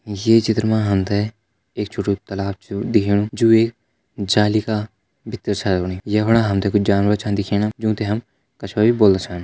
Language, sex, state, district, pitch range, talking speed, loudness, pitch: Hindi, male, Uttarakhand, Tehri Garhwal, 100-110 Hz, 185 wpm, -19 LUFS, 105 Hz